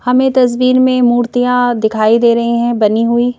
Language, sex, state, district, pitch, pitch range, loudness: Hindi, female, Madhya Pradesh, Bhopal, 240 Hz, 235-250 Hz, -12 LUFS